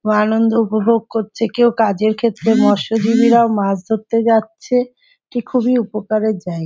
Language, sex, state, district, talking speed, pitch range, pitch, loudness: Bengali, female, West Bengal, Jhargram, 125 wpm, 215-235 Hz, 225 Hz, -16 LUFS